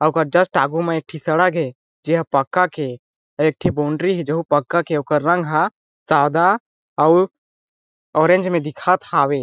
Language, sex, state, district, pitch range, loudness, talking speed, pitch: Chhattisgarhi, male, Chhattisgarh, Jashpur, 150-175 Hz, -18 LUFS, 185 wpm, 160 Hz